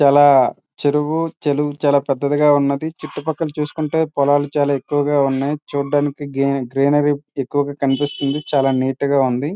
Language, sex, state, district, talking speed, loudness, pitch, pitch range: Telugu, male, Andhra Pradesh, Srikakulam, 140 wpm, -18 LUFS, 145 Hz, 140-150 Hz